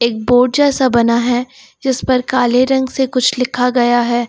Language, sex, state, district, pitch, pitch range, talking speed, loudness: Hindi, female, Uttar Pradesh, Lucknow, 250 Hz, 240-260 Hz, 180 wpm, -14 LUFS